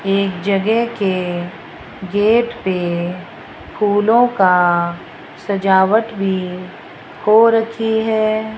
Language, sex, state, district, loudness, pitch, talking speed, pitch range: Hindi, female, Rajasthan, Jaipur, -16 LUFS, 195 Hz, 85 wpm, 185-220 Hz